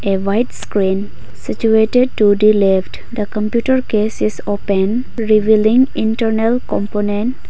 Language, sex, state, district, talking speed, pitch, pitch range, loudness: English, female, Nagaland, Kohima, 120 wpm, 215 Hz, 205-230 Hz, -15 LUFS